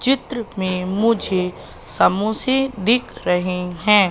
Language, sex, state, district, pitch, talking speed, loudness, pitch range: Hindi, female, Madhya Pradesh, Katni, 205 Hz, 100 wpm, -19 LUFS, 185-235 Hz